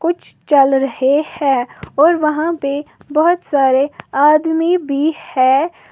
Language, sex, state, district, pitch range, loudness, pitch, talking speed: Hindi, female, Uttar Pradesh, Lalitpur, 275-325 Hz, -15 LUFS, 295 Hz, 120 wpm